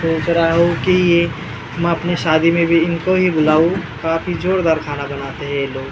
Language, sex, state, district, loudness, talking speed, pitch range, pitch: Hindi, male, Maharashtra, Gondia, -16 LUFS, 215 wpm, 155-170 Hz, 165 Hz